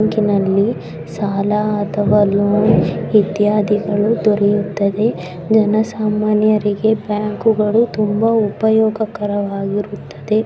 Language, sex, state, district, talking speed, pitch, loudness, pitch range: Kannada, female, Karnataka, Bellary, 55 wpm, 210 Hz, -16 LUFS, 205-215 Hz